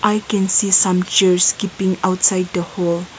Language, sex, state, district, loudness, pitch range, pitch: English, female, Nagaland, Kohima, -16 LUFS, 180-200 Hz, 185 Hz